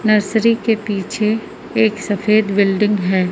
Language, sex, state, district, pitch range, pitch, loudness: Hindi, female, Madhya Pradesh, Umaria, 200-220 Hz, 210 Hz, -17 LUFS